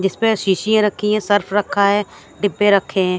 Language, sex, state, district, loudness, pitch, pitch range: Hindi, female, Haryana, Charkhi Dadri, -17 LUFS, 205 Hz, 195-210 Hz